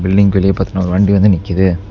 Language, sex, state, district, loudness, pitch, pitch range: Tamil, male, Tamil Nadu, Namakkal, -13 LUFS, 95 Hz, 95-100 Hz